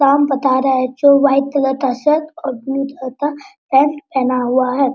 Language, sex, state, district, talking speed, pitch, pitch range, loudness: Hindi, female, Bihar, Araria, 205 wpm, 275 Hz, 260-285 Hz, -16 LUFS